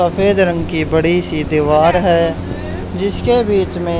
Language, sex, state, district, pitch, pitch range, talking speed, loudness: Hindi, male, Haryana, Charkhi Dadri, 165 Hz, 150-180 Hz, 150 wpm, -14 LUFS